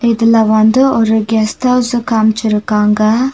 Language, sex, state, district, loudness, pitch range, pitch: Tamil, female, Tamil Nadu, Nilgiris, -12 LUFS, 215-240 Hz, 220 Hz